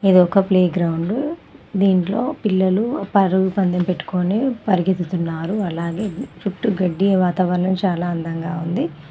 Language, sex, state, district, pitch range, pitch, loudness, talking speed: Telugu, female, Telangana, Mahabubabad, 175-200 Hz, 185 Hz, -19 LUFS, 105 wpm